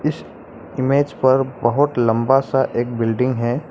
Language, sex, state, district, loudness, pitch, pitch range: Hindi, male, Arunachal Pradesh, Lower Dibang Valley, -18 LUFS, 130 Hz, 120-135 Hz